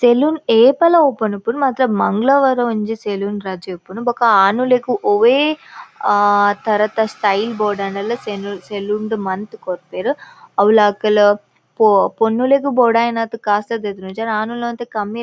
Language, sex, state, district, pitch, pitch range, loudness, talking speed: Tulu, female, Karnataka, Dakshina Kannada, 220 Hz, 205-240 Hz, -16 LUFS, 130 wpm